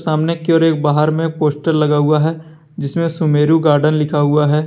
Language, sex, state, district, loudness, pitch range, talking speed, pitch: Hindi, male, Jharkhand, Deoghar, -15 LUFS, 150-160 Hz, 220 wpm, 155 Hz